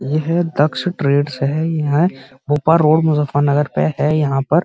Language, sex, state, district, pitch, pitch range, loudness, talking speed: Hindi, male, Uttar Pradesh, Muzaffarnagar, 150 Hz, 140-160 Hz, -16 LUFS, 170 wpm